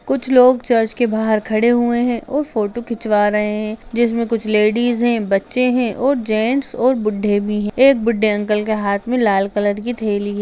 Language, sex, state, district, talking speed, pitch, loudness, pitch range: Hindi, female, Bihar, Gaya, 205 wpm, 225 Hz, -17 LUFS, 210-240 Hz